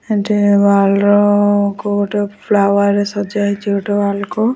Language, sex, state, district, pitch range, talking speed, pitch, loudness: Odia, female, Odisha, Nuapada, 200-205 Hz, 170 wpm, 205 Hz, -14 LUFS